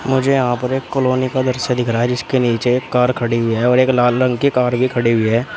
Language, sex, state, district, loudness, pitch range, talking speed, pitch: Hindi, male, Uttar Pradesh, Shamli, -16 LUFS, 120-130 Hz, 290 wpm, 125 Hz